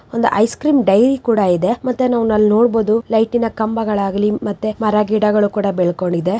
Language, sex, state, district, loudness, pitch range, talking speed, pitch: Kannada, female, Karnataka, Raichur, -16 LUFS, 205-230 Hz, 150 wpm, 215 Hz